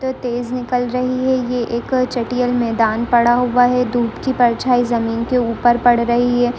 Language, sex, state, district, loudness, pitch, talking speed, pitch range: Hindi, female, Rajasthan, Churu, -17 LUFS, 245 Hz, 190 wpm, 235-250 Hz